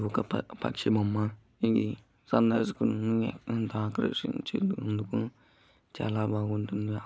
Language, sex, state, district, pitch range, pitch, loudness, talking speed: Telugu, male, Andhra Pradesh, Guntur, 105-115 Hz, 110 Hz, -30 LUFS, 60 wpm